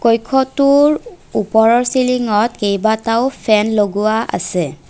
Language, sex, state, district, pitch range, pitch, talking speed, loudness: Assamese, female, Assam, Kamrup Metropolitan, 210-255 Hz, 225 Hz, 85 wpm, -15 LUFS